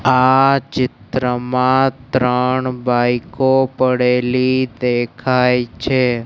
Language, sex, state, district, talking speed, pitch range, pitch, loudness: Gujarati, male, Gujarat, Gandhinagar, 65 wpm, 125-130 Hz, 125 Hz, -16 LUFS